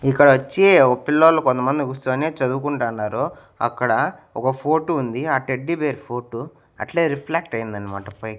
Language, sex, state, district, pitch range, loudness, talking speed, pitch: Telugu, male, Andhra Pradesh, Annamaya, 120-150 Hz, -20 LUFS, 145 wpm, 130 Hz